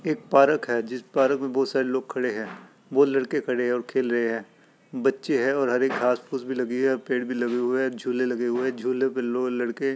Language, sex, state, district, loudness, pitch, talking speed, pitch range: Hindi, male, Uttar Pradesh, Hamirpur, -25 LUFS, 130 Hz, 265 wpm, 125-135 Hz